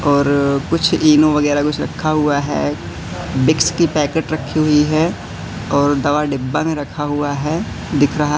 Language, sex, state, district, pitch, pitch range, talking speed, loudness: Hindi, male, Madhya Pradesh, Katni, 150 Hz, 140-155 Hz, 165 wpm, -16 LUFS